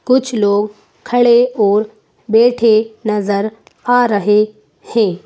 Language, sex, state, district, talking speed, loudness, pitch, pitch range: Hindi, female, Madhya Pradesh, Bhopal, 105 wpm, -14 LUFS, 220 Hz, 210-235 Hz